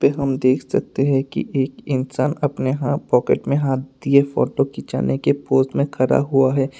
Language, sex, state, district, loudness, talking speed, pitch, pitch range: Hindi, male, Tripura, West Tripura, -20 LUFS, 195 wpm, 135 Hz, 130-140 Hz